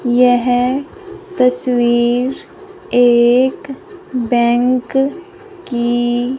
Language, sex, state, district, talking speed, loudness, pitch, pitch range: Hindi, female, Punjab, Fazilka, 45 wpm, -15 LUFS, 255 Hz, 245-360 Hz